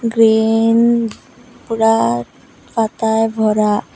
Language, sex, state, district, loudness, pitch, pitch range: Bengali, female, Assam, Hailakandi, -15 LUFS, 225 Hz, 220-230 Hz